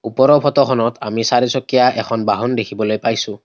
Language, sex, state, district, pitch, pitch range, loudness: Assamese, male, Assam, Kamrup Metropolitan, 115 Hz, 110-125 Hz, -16 LUFS